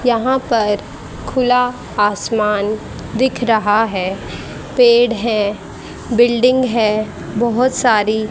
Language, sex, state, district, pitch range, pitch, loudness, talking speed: Hindi, female, Haryana, Charkhi Dadri, 210-245 Hz, 230 Hz, -16 LUFS, 95 wpm